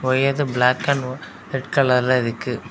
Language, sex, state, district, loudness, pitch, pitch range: Tamil, male, Tamil Nadu, Kanyakumari, -20 LUFS, 130 Hz, 125-135 Hz